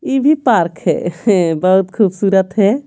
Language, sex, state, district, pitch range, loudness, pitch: Hindi, female, Bihar, Patna, 180-225 Hz, -14 LUFS, 195 Hz